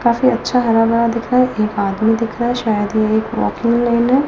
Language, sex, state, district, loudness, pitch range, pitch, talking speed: Hindi, female, Delhi, New Delhi, -16 LUFS, 220-240 Hz, 230 Hz, 250 wpm